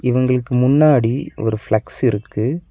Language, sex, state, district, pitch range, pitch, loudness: Tamil, male, Tamil Nadu, Nilgiris, 110-135 Hz, 125 Hz, -17 LUFS